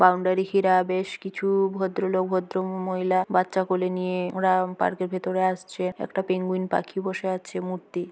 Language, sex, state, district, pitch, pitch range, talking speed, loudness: Bengali, female, West Bengal, Jhargram, 185 Hz, 185-190 Hz, 155 wpm, -25 LUFS